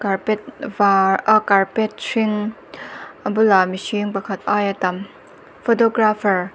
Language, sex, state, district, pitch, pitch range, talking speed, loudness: Mizo, female, Mizoram, Aizawl, 205 Hz, 195-215 Hz, 120 wpm, -18 LUFS